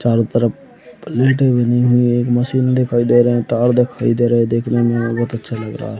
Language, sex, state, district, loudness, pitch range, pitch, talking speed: Hindi, male, Chhattisgarh, Raigarh, -16 LUFS, 115-125 Hz, 120 Hz, 250 wpm